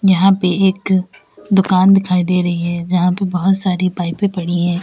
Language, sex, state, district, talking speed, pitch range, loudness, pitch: Hindi, female, Uttar Pradesh, Lalitpur, 185 wpm, 180-195 Hz, -15 LUFS, 185 Hz